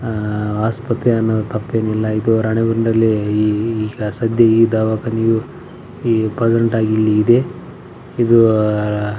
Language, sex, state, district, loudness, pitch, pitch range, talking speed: Kannada, male, Karnataka, Belgaum, -16 LUFS, 110 Hz, 110-115 Hz, 110 wpm